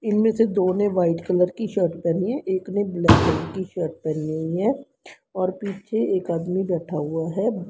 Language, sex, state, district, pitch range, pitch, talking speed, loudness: Hindi, female, Haryana, Rohtak, 170-205 Hz, 185 Hz, 195 wpm, -23 LUFS